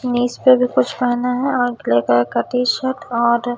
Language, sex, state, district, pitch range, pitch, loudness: Hindi, female, Chhattisgarh, Raipur, 240-250 Hz, 245 Hz, -17 LUFS